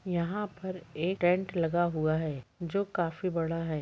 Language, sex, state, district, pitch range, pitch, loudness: Hindi, male, Jharkhand, Jamtara, 165-185 Hz, 170 Hz, -31 LUFS